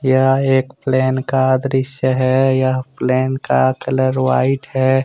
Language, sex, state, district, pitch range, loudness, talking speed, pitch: Hindi, male, Jharkhand, Deoghar, 130-135 Hz, -16 LUFS, 140 wpm, 130 Hz